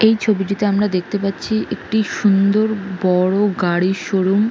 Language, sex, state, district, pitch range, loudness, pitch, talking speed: Bengali, female, West Bengal, North 24 Parganas, 190-215 Hz, -17 LUFS, 200 Hz, 135 wpm